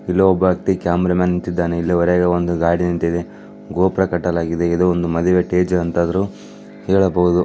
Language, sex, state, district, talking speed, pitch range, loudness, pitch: Kannada, male, Karnataka, Dakshina Kannada, 160 wpm, 85-90 Hz, -18 LUFS, 90 Hz